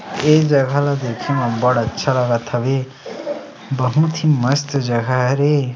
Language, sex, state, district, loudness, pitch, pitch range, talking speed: Chhattisgarhi, male, Chhattisgarh, Sarguja, -18 LUFS, 135 Hz, 125-145 Hz, 155 wpm